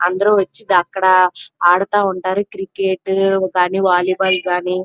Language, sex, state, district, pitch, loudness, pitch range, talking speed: Telugu, female, Andhra Pradesh, Krishna, 185 Hz, -16 LUFS, 180-195 Hz, 125 wpm